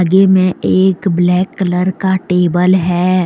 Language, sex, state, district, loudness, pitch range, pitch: Hindi, female, Jharkhand, Deoghar, -13 LUFS, 180-190 Hz, 185 Hz